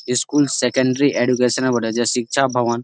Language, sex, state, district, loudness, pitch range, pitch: Bengali, male, West Bengal, Malda, -18 LUFS, 120-130 Hz, 125 Hz